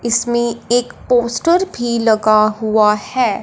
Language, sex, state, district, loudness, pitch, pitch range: Hindi, male, Punjab, Fazilka, -15 LUFS, 235 Hz, 215-245 Hz